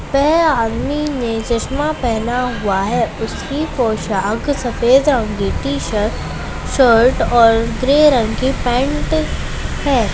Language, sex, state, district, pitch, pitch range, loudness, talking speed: Hindi, female, Chhattisgarh, Raigarh, 240 Hz, 220-270 Hz, -16 LUFS, 125 wpm